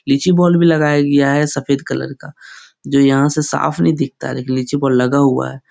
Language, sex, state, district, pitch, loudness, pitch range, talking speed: Hindi, male, Bihar, Jahanabad, 140 Hz, -15 LUFS, 130-145 Hz, 240 wpm